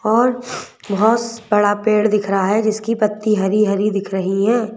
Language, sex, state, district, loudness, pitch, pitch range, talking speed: Hindi, female, Madhya Pradesh, Bhopal, -17 LUFS, 215 Hz, 205-225 Hz, 165 wpm